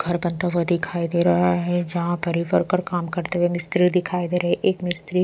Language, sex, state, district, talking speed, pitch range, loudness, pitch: Hindi, female, Odisha, Sambalpur, 230 wpm, 175-180 Hz, -22 LUFS, 175 Hz